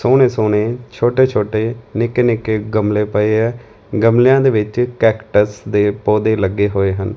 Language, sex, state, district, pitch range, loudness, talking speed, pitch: Punjabi, male, Punjab, Fazilka, 105-120 Hz, -15 LUFS, 150 wpm, 110 Hz